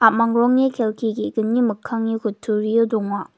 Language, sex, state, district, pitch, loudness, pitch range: Garo, female, Meghalaya, West Garo Hills, 225 Hz, -20 LUFS, 215-230 Hz